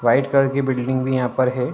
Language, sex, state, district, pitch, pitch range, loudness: Hindi, male, Uttar Pradesh, Ghazipur, 130 Hz, 125-135 Hz, -20 LUFS